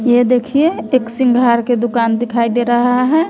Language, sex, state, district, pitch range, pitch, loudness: Hindi, female, Bihar, West Champaran, 235-250 Hz, 245 Hz, -14 LUFS